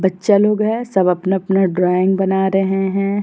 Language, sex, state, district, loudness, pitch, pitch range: Hindi, female, Uttar Pradesh, Jyotiba Phule Nagar, -16 LUFS, 190 Hz, 190-200 Hz